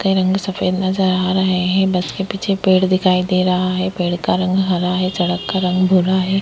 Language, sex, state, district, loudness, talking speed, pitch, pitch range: Hindi, female, Uttar Pradesh, Etah, -17 LUFS, 235 wpm, 185 Hz, 185-190 Hz